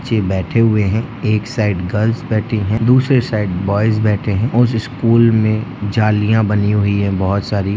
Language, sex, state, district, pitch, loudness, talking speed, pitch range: Hindi, male, Andhra Pradesh, Anantapur, 110 Hz, -15 LUFS, 180 wpm, 100-115 Hz